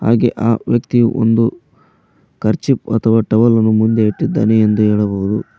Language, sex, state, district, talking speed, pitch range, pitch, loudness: Kannada, male, Karnataka, Koppal, 130 wpm, 110-120 Hz, 115 Hz, -14 LUFS